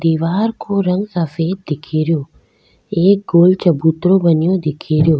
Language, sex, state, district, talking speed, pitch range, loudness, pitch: Rajasthani, female, Rajasthan, Nagaur, 115 wpm, 160-185 Hz, -15 LUFS, 170 Hz